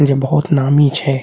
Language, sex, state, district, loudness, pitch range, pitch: Maithili, male, Bihar, Saharsa, -14 LUFS, 135-145 Hz, 140 Hz